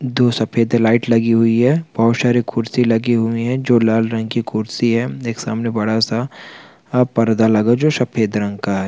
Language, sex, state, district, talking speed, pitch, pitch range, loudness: Hindi, male, Chhattisgarh, Bastar, 195 wpm, 115 Hz, 110-120 Hz, -17 LUFS